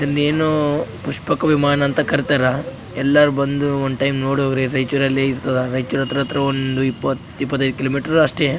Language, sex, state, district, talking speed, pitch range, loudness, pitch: Kannada, male, Karnataka, Raichur, 145 wpm, 135-145 Hz, -18 LUFS, 140 Hz